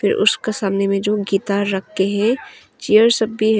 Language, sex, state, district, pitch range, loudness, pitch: Hindi, female, Arunachal Pradesh, Longding, 195-220 Hz, -18 LUFS, 210 Hz